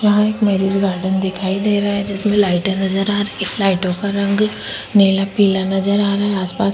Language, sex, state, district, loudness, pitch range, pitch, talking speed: Hindi, female, Chhattisgarh, Sukma, -17 LUFS, 195-205 Hz, 200 Hz, 225 wpm